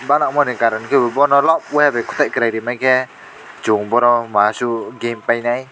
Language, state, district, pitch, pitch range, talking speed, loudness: Kokborok, Tripura, West Tripura, 120 Hz, 115-130 Hz, 170 wpm, -16 LUFS